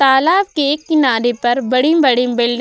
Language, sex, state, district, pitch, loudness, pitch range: Hindi, female, Uttar Pradesh, Budaun, 265 Hz, -14 LUFS, 245-300 Hz